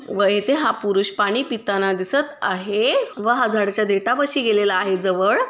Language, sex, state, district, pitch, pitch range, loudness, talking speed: Marathi, female, Maharashtra, Sindhudurg, 205 Hz, 195-245 Hz, -19 LUFS, 165 wpm